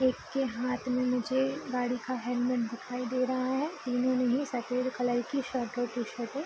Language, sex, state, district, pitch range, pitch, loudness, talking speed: Hindi, female, Bihar, East Champaran, 245-260 Hz, 250 Hz, -31 LUFS, 215 wpm